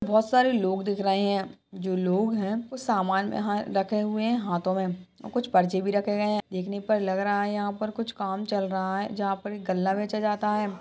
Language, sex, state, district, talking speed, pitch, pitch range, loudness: Hindi, female, Maharashtra, Solapur, 235 wpm, 205 Hz, 190-215 Hz, -27 LUFS